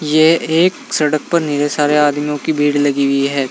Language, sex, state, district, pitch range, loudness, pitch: Hindi, male, Uttar Pradesh, Saharanpur, 145-155 Hz, -15 LUFS, 150 Hz